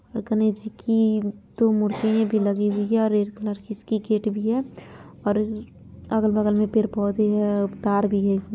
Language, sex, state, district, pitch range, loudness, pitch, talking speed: Hindi, female, Bihar, Araria, 205-220 Hz, -23 LUFS, 215 Hz, 195 wpm